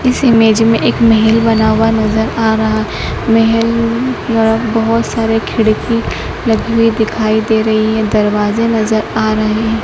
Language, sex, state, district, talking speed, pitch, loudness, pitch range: Hindi, female, Madhya Pradesh, Dhar, 160 wpm, 225 Hz, -12 LUFS, 220-230 Hz